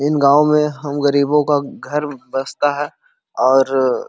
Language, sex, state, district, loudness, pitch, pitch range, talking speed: Hindi, male, Jharkhand, Sahebganj, -17 LUFS, 145 Hz, 135-150 Hz, 160 wpm